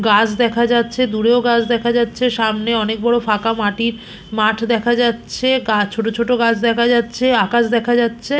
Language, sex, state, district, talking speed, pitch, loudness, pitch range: Bengali, female, West Bengal, Purulia, 170 wpm, 235 Hz, -16 LUFS, 225-240 Hz